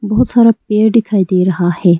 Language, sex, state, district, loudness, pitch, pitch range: Hindi, female, Arunachal Pradesh, Lower Dibang Valley, -12 LUFS, 210 Hz, 185-225 Hz